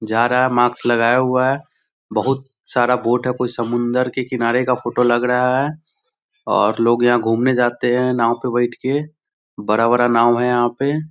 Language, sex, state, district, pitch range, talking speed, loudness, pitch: Hindi, male, Bihar, Sitamarhi, 120-130 Hz, 190 wpm, -17 LUFS, 125 Hz